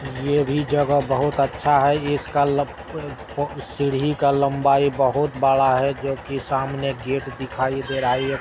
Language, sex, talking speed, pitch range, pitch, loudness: Maithili, male, 165 wpm, 135-145 Hz, 140 Hz, -21 LUFS